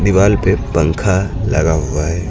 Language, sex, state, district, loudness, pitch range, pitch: Hindi, male, Uttar Pradesh, Lucknow, -15 LUFS, 80-100 Hz, 95 Hz